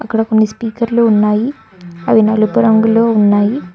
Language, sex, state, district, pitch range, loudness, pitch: Telugu, female, Telangana, Hyderabad, 210-230 Hz, -12 LUFS, 220 Hz